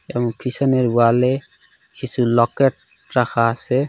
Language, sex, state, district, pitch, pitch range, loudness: Bengali, male, Assam, Hailakandi, 125 Hz, 120-130 Hz, -19 LUFS